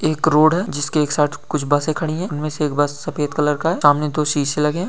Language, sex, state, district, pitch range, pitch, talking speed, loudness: Hindi, male, West Bengal, Kolkata, 145-155 Hz, 150 Hz, 270 wpm, -19 LUFS